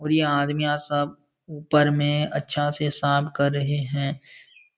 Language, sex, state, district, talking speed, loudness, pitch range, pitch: Hindi, male, Bihar, Supaul, 165 wpm, -23 LUFS, 145-150 Hz, 145 Hz